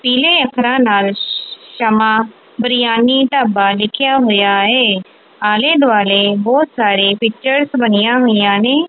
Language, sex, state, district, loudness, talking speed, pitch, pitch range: Punjabi, female, Punjab, Kapurthala, -13 LUFS, 115 wpm, 235 Hz, 205-265 Hz